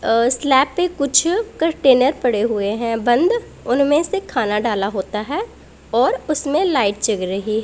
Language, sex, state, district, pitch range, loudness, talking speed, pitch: Hindi, female, Punjab, Pathankot, 215-310 Hz, -18 LUFS, 155 wpm, 260 Hz